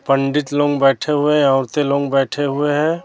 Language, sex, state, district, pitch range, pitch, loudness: Hindi, male, Chhattisgarh, Raipur, 135-145 Hz, 145 Hz, -17 LUFS